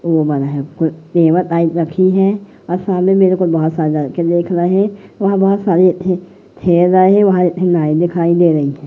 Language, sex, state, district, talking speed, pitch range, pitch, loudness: Hindi, male, Madhya Pradesh, Katni, 150 wpm, 165-185 Hz, 175 Hz, -14 LUFS